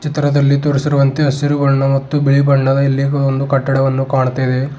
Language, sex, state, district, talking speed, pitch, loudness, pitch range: Kannada, male, Karnataka, Bidar, 150 wpm, 140 Hz, -14 LUFS, 135-145 Hz